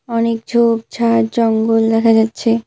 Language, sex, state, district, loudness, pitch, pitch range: Bengali, female, West Bengal, Cooch Behar, -15 LUFS, 230 Hz, 225-230 Hz